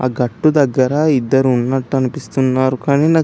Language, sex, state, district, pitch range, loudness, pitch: Telugu, male, Telangana, Karimnagar, 130-145 Hz, -15 LUFS, 135 Hz